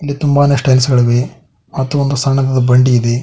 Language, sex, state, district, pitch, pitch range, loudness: Kannada, male, Karnataka, Koppal, 130 Hz, 125-140 Hz, -12 LUFS